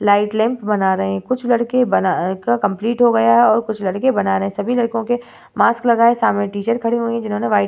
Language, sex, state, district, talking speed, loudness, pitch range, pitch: Hindi, female, Bihar, Vaishali, 265 wpm, -17 LUFS, 205-235 Hz, 225 Hz